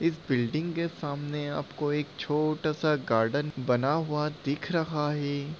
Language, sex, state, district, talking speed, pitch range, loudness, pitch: Hindi, male, Bihar, Lakhisarai, 140 wpm, 145-155 Hz, -29 LUFS, 150 Hz